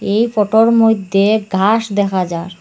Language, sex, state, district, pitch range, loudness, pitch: Bengali, female, Assam, Hailakandi, 190-220 Hz, -14 LUFS, 205 Hz